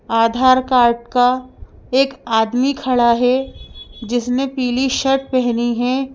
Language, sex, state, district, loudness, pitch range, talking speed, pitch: Hindi, female, Madhya Pradesh, Bhopal, -17 LUFS, 240-265 Hz, 115 wpm, 250 Hz